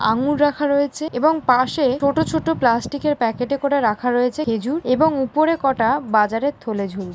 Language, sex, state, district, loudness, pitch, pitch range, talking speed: Bengali, female, West Bengal, Malda, -19 LUFS, 275 Hz, 240-295 Hz, 170 wpm